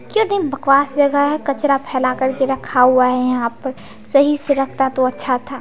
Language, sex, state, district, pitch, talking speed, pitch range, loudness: Maithili, female, Bihar, Samastipur, 270 Hz, 190 wpm, 255-285 Hz, -16 LUFS